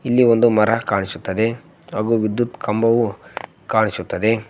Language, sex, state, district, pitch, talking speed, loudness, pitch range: Kannada, male, Karnataka, Koppal, 110 Hz, 105 wpm, -19 LUFS, 105-115 Hz